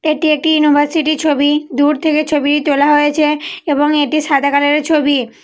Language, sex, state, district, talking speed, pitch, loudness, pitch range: Bengali, female, West Bengal, Purulia, 155 wpm, 300 Hz, -13 LUFS, 290-310 Hz